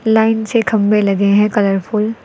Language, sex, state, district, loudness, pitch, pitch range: Hindi, female, Uttar Pradesh, Lucknow, -14 LUFS, 210 Hz, 205-220 Hz